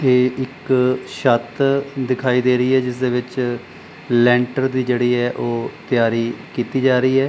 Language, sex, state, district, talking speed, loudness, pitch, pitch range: Punjabi, male, Punjab, Pathankot, 155 wpm, -18 LUFS, 125 Hz, 120-130 Hz